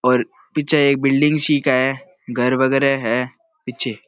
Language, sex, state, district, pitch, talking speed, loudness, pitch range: Marwari, male, Rajasthan, Nagaur, 135 Hz, 160 wpm, -18 LUFS, 125-150 Hz